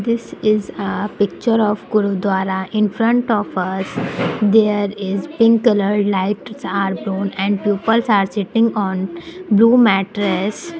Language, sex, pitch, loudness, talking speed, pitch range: English, female, 205 Hz, -17 LUFS, 130 wpm, 195-225 Hz